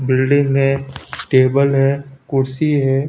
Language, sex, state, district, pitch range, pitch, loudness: Hindi, male, Punjab, Pathankot, 135-140 Hz, 135 Hz, -16 LUFS